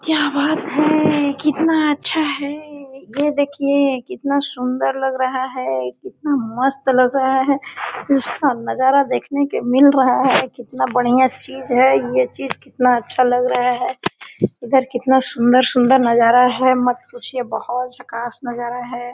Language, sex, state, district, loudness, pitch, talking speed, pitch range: Hindi, female, Jharkhand, Sahebganj, -17 LUFS, 260 Hz, 145 wpm, 245-285 Hz